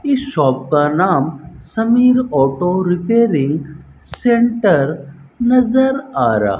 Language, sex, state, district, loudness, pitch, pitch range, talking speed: Hindi, male, Rajasthan, Bikaner, -15 LUFS, 180 Hz, 145-240 Hz, 110 wpm